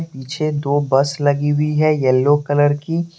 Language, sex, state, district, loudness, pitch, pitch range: Hindi, male, Jharkhand, Deoghar, -17 LUFS, 145 Hz, 140-155 Hz